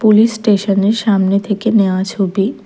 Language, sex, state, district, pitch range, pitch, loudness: Bengali, female, Tripura, West Tripura, 195-220 Hz, 205 Hz, -14 LUFS